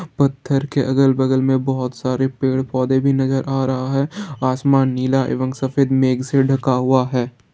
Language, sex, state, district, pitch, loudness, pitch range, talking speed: Hindi, male, Bihar, Saran, 130 Hz, -18 LUFS, 130-135 Hz, 175 wpm